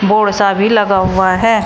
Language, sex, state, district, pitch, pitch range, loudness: Hindi, female, Uttar Pradesh, Shamli, 205 Hz, 195-215 Hz, -12 LUFS